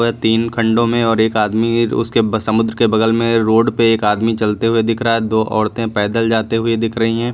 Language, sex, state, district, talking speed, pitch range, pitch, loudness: Hindi, male, Uttar Pradesh, Lucknow, 235 wpm, 110-115 Hz, 115 Hz, -15 LUFS